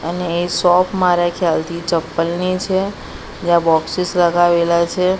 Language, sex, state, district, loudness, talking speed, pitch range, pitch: Gujarati, female, Gujarat, Gandhinagar, -16 LUFS, 125 wpm, 170-180 Hz, 175 Hz